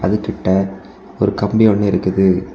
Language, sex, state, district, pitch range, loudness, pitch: Tamil, male, Tamil Nadu, Kanyakumari, 95-105 Hz, -16 LUFS, 100 Hz